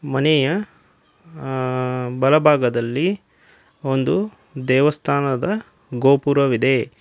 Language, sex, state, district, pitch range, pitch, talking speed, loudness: Kannada, male, Karnataka, Koppal, 130-155 Hz, 135 Hz, 50 wpm, -19 LUFS